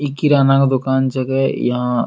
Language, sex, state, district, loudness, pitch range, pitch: Angika, male, Bihar, Bhagalpur, -16 LUFS, 130-135 Hz, 135 Hz